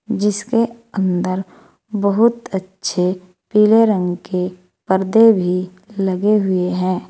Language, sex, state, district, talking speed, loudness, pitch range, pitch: Hindi, female, Uttar Pradesh, Saharanpur, 100 wpm, -17 LUFS, 185-215 Hz, 190 Hz